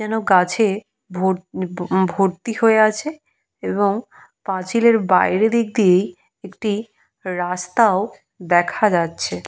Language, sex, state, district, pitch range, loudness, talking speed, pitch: Bengali, female, Jharkhand, Jamtara, 180-220 Hz, -19 LUFS, 90 wpm, 195 Hz